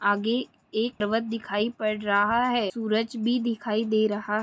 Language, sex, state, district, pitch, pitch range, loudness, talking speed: Hindi, female, Maharashtra, Pune, 220 Hz, 210-230 Hz, -26 LUFS, 160 wpm